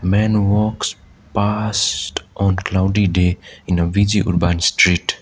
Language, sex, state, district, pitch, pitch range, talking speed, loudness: English, male, Sikkim, Gangtok, 95 Hz, 90-105 Hz, 125 wpm, -17 LUFS